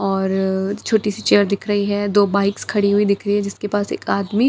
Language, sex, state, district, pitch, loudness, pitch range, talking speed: Hindi, female, Bihar, Katihar, 205 Hz, -19 LUFS, 200-205 Hz, 240 wpm